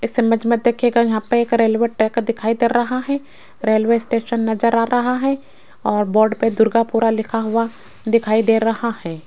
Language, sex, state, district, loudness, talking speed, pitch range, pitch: Hindi, female, Rajasthan, Jaipur, -18 LUFS, 190 wpm, 220-235 Hz, 230 Hz